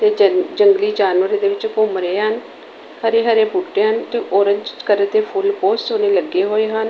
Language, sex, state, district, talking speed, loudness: Punjabi, female, Punjab, Kapurthala, 190 wpm, -17 LUFS